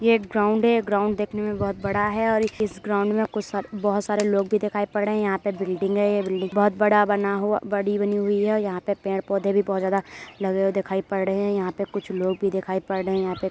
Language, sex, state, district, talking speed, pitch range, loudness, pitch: Hindi, female, Uttar Pradesh, Etah, 285 wpm, 195-210 Hz, -24 LUFS, 205 Hz